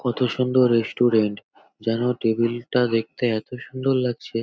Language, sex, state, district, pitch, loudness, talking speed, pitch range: Bengali, male, West Bengal, North 24 Parganas, 120 Hz, -22 LUFS, 160 wpm, 115-125 Hz